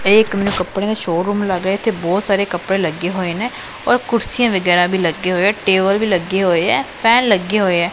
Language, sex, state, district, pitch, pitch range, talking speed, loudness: Punjabi, female, Punjab, Pathankot, 195 Hz, 180-210 Hz, 225 wpm, -16 LUFS